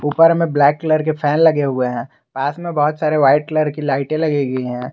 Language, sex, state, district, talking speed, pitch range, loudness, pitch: Hindi, male, Jharkhand, Garhwa, 245 wpm, 135-155 Hz, -16 LUFS, 150 Hz